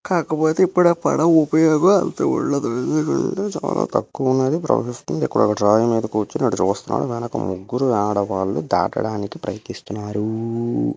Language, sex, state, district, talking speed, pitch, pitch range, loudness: Telugu, male, Andhra Pradesh, Visakhapatnam, 120 wpm, 115 Hz, 105-155 Hz, -20 LUFS